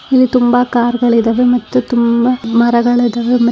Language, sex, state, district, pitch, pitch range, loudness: Kannada, female, Karnataka, Raichur, 240 Hz, 235-245 Hz, -12 LUFS